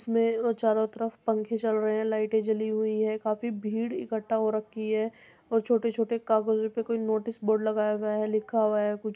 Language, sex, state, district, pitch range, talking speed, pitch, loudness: Hindi, female, Uttar Pradesh, Muzaffarnagar, 215-225 Hz, 215 wpm, 220 Hz, -28 LUFS